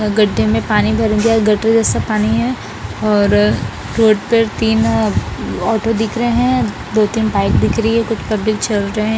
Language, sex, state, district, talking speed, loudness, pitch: Hindi, female, Bihar, Patna, 190 wpm, -15 LUFS, 210 Hz